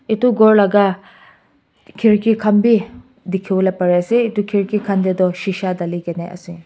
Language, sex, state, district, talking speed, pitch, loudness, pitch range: Nagamese, male, Nagaland, Kohima, 170 wpm, 200 Hz, -16 LUFS, 185-220 Hz